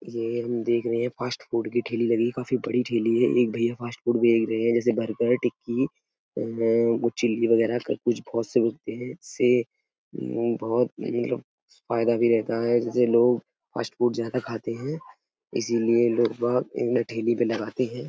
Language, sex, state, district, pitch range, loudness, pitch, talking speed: Hindi, male, Uttar Pradesh, Etah, 115-120 Hz, -25 LUFS, 120 Hz, 190 wpm